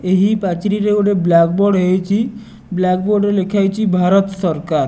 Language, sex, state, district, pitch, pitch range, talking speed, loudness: Odia, male, Odisha, Nuapada, 195 Hz, 185-205 Hz, 160 wpm, -15 LUFS